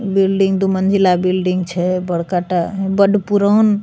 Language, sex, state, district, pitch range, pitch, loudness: Maithili, female, Bihar, Begusarai, 180-200 Hz, 190 Hz, -16 LUFS